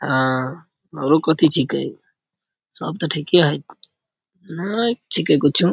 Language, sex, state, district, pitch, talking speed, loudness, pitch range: Maithili, male, Bihar, Samastipur, 160 Hz, 115 wpm, -19 LUFS, 145-175 Hz